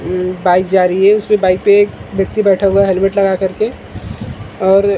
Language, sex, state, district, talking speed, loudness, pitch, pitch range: Hindi, male, Maharashtra, Mumbai Suburban, 215 wpm, -13 LUFS, 190 Hz, 180-200 Hz